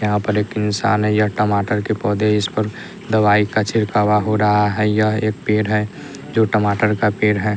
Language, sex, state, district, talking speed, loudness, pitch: Hindi, male, Bihar, West Champaran, 205 wpm, -18 LUFS, 105 Hz